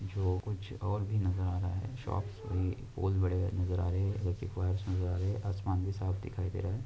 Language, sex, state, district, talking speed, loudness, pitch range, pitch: Hindi, male, West Bengal, Purulia, 245 wpm, -35 LUFS, 90-100 Hz, 95 Hz